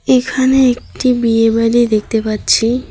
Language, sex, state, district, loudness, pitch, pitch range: Bengali, female, West Bengal, Alipurduar, -13 LUFS, 240 Hz, 225-255 Hz